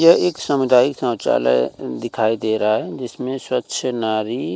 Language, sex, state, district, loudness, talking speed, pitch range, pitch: Hindi, male, Uttar Pradesh, Jyotiba Phule Nagar, -19 LUFS, 160 wpm, 110-130 Hz, 125 Hz